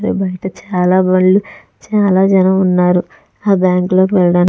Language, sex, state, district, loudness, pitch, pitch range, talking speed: Telugu, female, Andhra Pradesh, Chittoor, -13 LUFS, 185 Hz, 180-190 Hz, 145 wpm